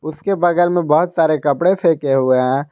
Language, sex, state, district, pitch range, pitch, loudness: Hindi, male, Jharkhand, Garhwa, 145-175 Hz, 155 Hz, -16 LUFS